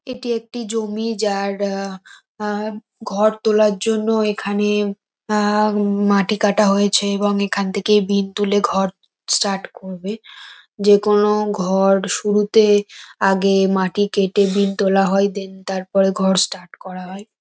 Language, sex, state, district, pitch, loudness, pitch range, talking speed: Bengali, female, West Bengal, Kolkata, 205 Hz, -18 LUFS, 195-210 Hz, 130 wpm